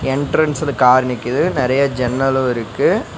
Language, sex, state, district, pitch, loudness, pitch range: Tamil, male, Tamil Nadu, Nilgiris, 130 Hz, -16 LUFS, 125-140 Hz